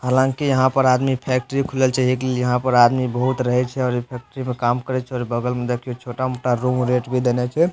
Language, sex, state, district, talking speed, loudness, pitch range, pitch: Maithili, male, Bihar, Supaul, 250 wpm, -20 LUFS, 125-130 Hz, 125 Hz